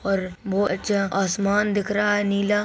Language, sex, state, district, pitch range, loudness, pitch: Hindi, male, Chhattisgarh, Kabirdham, 195-205 Hz, -23 LUFS, 200 Hz